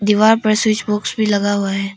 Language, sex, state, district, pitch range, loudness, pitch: Hindi, female, Arunachal Pradesh, Papum Pare, 205-215 Hz, -16 LUFS, 210 Hz